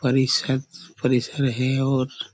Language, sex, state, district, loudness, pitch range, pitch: Hindi, male, Chhattisgarh, Korba, -23 LUFS, 130-140 Hz, 130 Hz